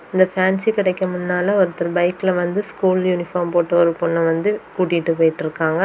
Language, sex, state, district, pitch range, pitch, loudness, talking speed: Tamil, female, Tamil Nadu, Kanyakumari, 170-185 Hz, 180 Hz, -19 LUFS, 155 wpm